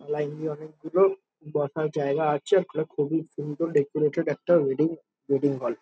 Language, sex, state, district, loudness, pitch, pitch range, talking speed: Bengali, male, West Bengal, Jhargram, -26 LUFS, 150 Hz, 145-160 Hz, 165 wpm